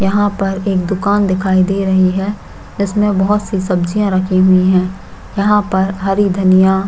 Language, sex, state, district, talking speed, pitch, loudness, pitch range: Hindi, female, Chhattisgarh, Jashpur, 165 wpm, 195 Hz, -14 LUFS, 185-200 Hz